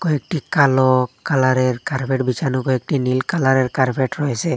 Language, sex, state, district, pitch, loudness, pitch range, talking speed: Bengali, male, Assam, Hailakandi, 130 Hz, -18 LUFS, 130-140 Hz, 130 wpm